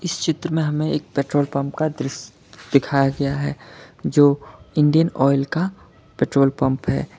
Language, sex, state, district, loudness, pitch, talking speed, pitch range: Hindi, male, Karnataka, Bangalore, -20 LUFS, 140 Hz, 160 wpm, 135-155 Hz